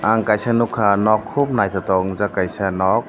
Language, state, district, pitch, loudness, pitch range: Kokborok, Tripura, Dhalai, 105 Hz, -18 LUFS, 95-115 Hz